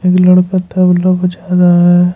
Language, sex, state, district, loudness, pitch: Hindi, male, Jharkhand, Ranchi, -10 LUFS, 180 Hz